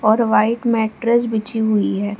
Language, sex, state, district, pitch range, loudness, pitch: Hindi, female, Bihar, Supaul, 215-230 Hz, -18 LUFS, 220 Hz